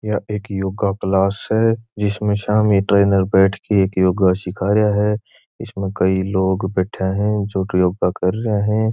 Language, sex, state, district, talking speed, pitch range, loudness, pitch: Marwari, male, Rajasthan, Churu, 170 wpm, 95-105 Hz, -18 LUFS, 100 Hz